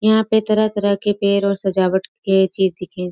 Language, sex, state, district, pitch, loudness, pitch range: Hindi, female, Bihar, Sitamarhi, 200 Hz, -18 LUFS, 190-210 Hz